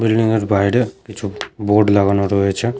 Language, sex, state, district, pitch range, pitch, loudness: Bengali, male, West Bengal, Malda, 100-110 Hz, 105 Hz, -16 LUFS